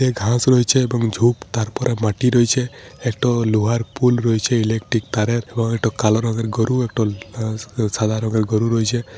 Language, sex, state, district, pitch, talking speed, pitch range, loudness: Bengali, male, Jharkhand, Jamtara, 115 Hz, 170 wpm, 110-120 Hz, -19 LUFS